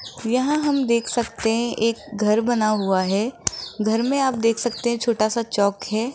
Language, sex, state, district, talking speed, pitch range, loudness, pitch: Hindi, female, Rajasthan, Jaipur, 195 wpm, 215-240 Hz, -22 LUFS, 230 Hz